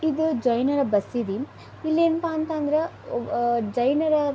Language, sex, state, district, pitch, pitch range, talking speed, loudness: Kannada, female, Karnataka, Belgaum, 295 Hz, 240-315 Hz, 140 wpm, -24 LUFS